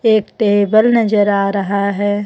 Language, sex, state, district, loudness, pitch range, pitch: Hindi, female, Jharkhand, Ranchi, -14 LUFS, 200-215 Hz, 205 Hz